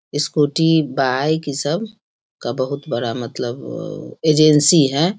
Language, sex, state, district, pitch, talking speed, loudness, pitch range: Hindi, female, Bihar, Sitamarhi, 145 Hz, 125 wpm, -18 LUFS, 130-160 Hz